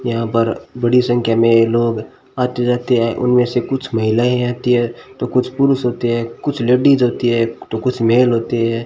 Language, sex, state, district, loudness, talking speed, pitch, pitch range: Hindi, male, Rajasthan, Bikaner, -16 LUFS, 195 wpm, 120 Hz, 115-125 Hz